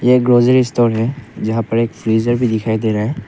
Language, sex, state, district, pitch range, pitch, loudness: Hindi, male, Arunachal Pradesh, Papum Pare, 110-125 Hz, 115 Hz, -15 LUFS